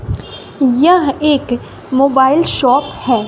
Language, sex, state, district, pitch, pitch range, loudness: Hindi, female, Bihar, West Champaran, 270 Hz, 255-295 Hz, -13 LUFS